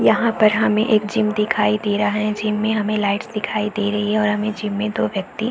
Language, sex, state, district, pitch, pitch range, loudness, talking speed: Hindi, female, Bihar, East Champaran, 210 Hz, 210-215 Hz, -19 LUFS, 260 wpm